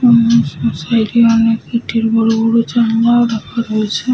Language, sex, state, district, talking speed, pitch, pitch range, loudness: Bengali, female, Jharkhand, Sahebganj, 145 wpm, 230 Hz, 225-235 Hz, -13 LUFS